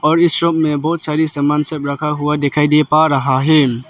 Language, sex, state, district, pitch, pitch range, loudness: Hindi, male, Arunachal Pradesh, Lower Dibang Valley, 150 Hz, 145-155 Hz, -14 LUFS